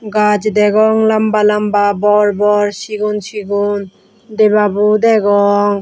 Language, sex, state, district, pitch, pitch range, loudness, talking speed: Chakma, female, Tripura, West Tripura, 210 Hz, 205-215 Hz, -13 LUFS, 105 wpm